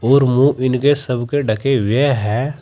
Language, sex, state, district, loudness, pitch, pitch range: Hindi, male, Uttar Pradesh, Saharanpur, -16 LUFS, 130 Hz, 125-140 Hz